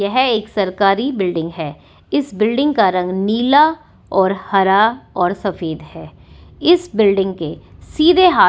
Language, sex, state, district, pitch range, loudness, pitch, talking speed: Hindi, female, Delhi, New Delhi, 190-265 Hz, -16 LUFS, 200 Hz, 140 wpm